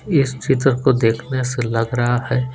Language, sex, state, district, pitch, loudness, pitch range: Hindi, male, Bihar, Patna, 125 Hz, -18 LUFS, 120-130 Hz